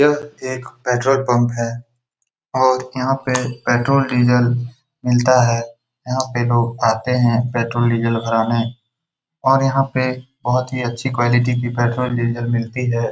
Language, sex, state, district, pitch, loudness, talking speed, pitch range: Hindi, male, Bihar, Jamui, 125 Hz, -18 LUFS, 145 wpm, 120-130 Hz